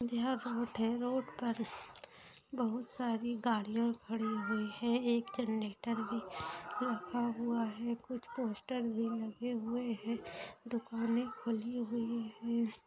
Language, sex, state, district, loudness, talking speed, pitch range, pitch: Hindi, female, Bihar, Begusarai, -38 LUFS, 120 wpm, 225-240 Hz, 235 Hz